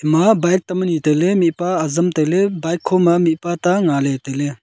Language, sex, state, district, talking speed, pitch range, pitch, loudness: Wancho, male, Arunachal Pradesh, Longding, 180 wpm, 155-180 Hz, 170 Hz, -17 LUFS